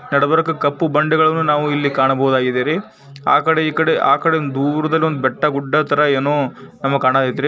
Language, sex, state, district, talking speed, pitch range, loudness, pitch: Kannada, male, Karnataka, Bijapur, 170 wpm, 135-160 Hz, -16 LUFS, 145 Hz